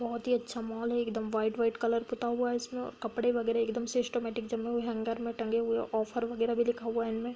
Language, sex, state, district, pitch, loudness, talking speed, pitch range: Hindi, female, Bihar, Darbhanga, 235 Hz, -32 LUFS, 260 wpm, 230-240 Hz